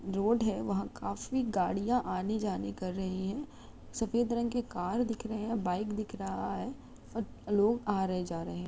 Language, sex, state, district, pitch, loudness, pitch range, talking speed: Hindi, female, Uttar Pradesh, Jalaun, 210 Hz, -34 LUFS, 190-230 Hz, 195 wpm